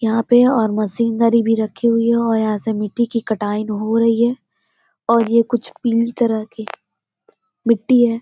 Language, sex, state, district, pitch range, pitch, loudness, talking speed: Hindi, female, Bihar, Gopalganj, 220-235 Hz, 230 Hz, -17 LUFS, 180 wpm